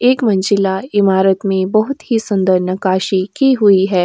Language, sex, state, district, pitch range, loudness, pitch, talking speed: Hindi, female, Uttar Pradesh, Jyotiba Phule Nagar, 190-215 Hz, -14 LUFS, 195 Hz, 160 wpm